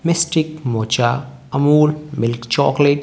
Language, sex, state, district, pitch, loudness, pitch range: Hindi, male, Haryana, Jhajjar, 140 Hz, -17 LUFS, 120-150 Hz